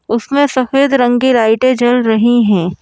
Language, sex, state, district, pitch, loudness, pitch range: Hindi, female, Madhya Pradesh, Bhopal, 245 Hz, -12 LUFS, 230-260 Hz